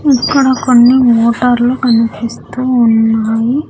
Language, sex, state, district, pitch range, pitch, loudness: Telugu, female, Andhra Pradesh, Sri Satya Sai, 230-260 Hz, 245 Hz, -11 LUFS